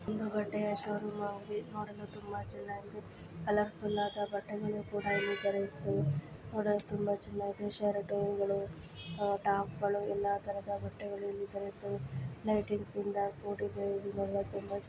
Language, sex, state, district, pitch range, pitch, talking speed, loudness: Kannada, female, Karnataka, Gulbarga, 200-205 Hz, 205 Hz, 120 wpm, -36 LUFS